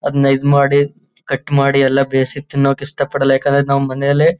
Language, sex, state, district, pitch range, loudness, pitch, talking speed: Kannada, male, Karnataka, Chamarajanagar, 135-140 Hz, -15 LUFS, 140 Hz, 175 wpm